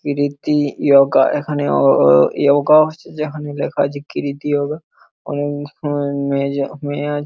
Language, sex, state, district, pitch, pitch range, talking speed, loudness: Bengali, male, West Bengal, Purulia, 145 Hz, 140-145 Hz, 130 wpm, -17 LUFS